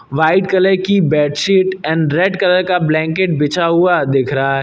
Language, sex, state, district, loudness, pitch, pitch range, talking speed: Hindi, male, Uttar Pradesh, Lucknow, -14 LUFS, 170 Hz, 150-185 Hz, 180 wpm